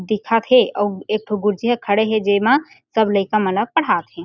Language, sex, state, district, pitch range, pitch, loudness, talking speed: Chhattisgarhi, female, Chhattisgarh, Jashpur, 205-235 Hz, 215 Hz, -18 LUFS, 225 wpm